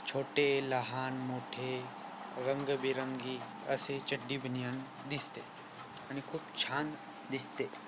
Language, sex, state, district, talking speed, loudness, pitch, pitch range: Marathi, male, Maharashtra, Aurangabad, 90 wpm, -37 LUFS, 130 Hz, 130-135 Hz